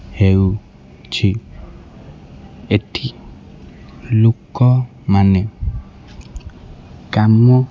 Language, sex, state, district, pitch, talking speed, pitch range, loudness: Odia, male, Odisha, Khordha, 95 Hz, 45 wpm, 75-115 Hz, -16 LUFS